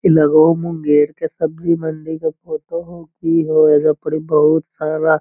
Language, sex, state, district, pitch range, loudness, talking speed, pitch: Magahi, male, Bihar, Lakhisarai, 155-165 Hz, -16 LUFS, 195 wpm, 160 Hz